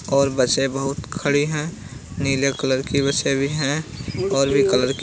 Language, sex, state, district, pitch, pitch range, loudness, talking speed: Bhojpuri, male, Uttar Pradesh, Gorakhpur, 140 Hz, 135-145 Hz, -21 LUFS, 180 wpm